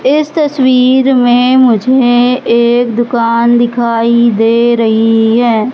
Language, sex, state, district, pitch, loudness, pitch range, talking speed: Hindi, female, Madhya Pradesh, Katni, 240 Hz, -9 LUFS, 230-255 Hz, 105 wpm